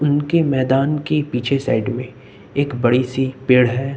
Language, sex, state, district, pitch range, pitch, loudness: Hindi, male, Uttar Pradesh, Lucknow, 125-140 Hz, 130 Hz, -18 LUFS